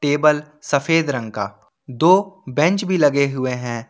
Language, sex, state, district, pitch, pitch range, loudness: Hindi, male, Jharkhand, Ranchi, 145 Hz, 130-155 Hz, -19 LUFS